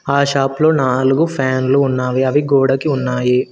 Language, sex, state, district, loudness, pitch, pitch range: Telugu, male, Telangana, Mahabubabad, -15 LUFS, 135 Hz, 130-140 Hz